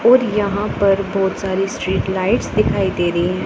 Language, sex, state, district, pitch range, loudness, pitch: Hindi, female, Punjab, Pathankot, 190-205 Hz, -18 LUFS, 195 Hz